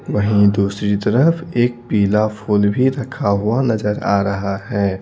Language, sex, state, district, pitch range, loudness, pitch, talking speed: Hindi, male, Bihar, Patna, 100-120 Hz, -17 LUFS, 105 Hz, 155 wpm